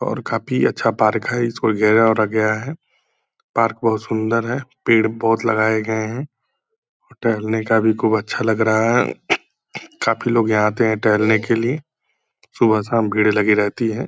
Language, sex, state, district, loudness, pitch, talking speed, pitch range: Hindi, male, Bihar, Purnia, -18 LUFS, 110 Hz, 185 wpm, 110-115 Hz